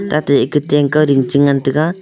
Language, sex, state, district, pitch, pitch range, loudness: Wancho, male, Arunachal Pradesh, Longding, 145 Hz, 140-150 Hz, -13 LUFS